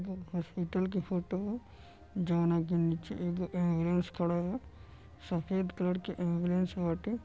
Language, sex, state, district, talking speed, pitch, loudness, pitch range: Bhojpuri, male, Uttar Pradesh, Deoria, 140 wpm, 180 Hz, -34 LUFS, 175-185 Hz